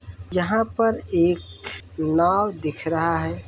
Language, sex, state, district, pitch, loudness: Hindi, male, Uttar Pradesh, Varanasi, 165 Hz, -23 LUFS